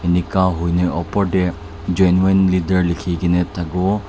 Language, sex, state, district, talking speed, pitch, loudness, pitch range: Nagamese, male, Nagaland, Dimapur, 145 wpm, 90 Hz, -18 LUFS, 85-95 Hz